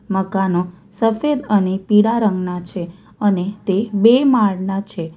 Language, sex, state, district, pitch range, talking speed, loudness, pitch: Gujarati, female, Gujarat, Valsad, 185-215 Hz, 125 wpm, -17 LUFS, 195 Hz